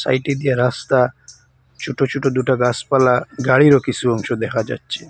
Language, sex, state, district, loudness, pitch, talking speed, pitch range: Bengali, male, Assam, Hailakandi, -17 LUFS, 130 Hz, 140 wpm, 125-135 Hz